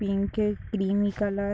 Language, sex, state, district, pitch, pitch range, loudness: Hindi, female, Uttar Pradesh, Deoria, 205 Hz, 200-210 Hz, -27 LUFS